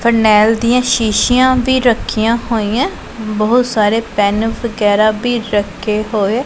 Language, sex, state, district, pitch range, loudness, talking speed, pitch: Punjabi, female, Punjab, Pathankot, 215-245 Hz, -14 LUFS, 120 wpm, 225 Hz